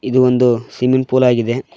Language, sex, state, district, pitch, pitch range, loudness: Kannada, male, Karnataka, Koppal, 125 Hz, 120-130 Hz, -15 LUFS